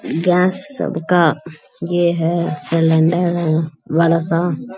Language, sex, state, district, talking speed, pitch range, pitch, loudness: Hindi, male, Bihar, Bhagalpur, 100 wpm, 160-175 Hz, 170 Hz, -17 LUFS